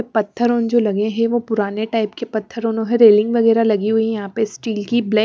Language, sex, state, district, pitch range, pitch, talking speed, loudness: Hindi, female, Haryana, Charkhi Dadri, 215-230 Hz, 225 Hz, 240 wpm, -17 LUFS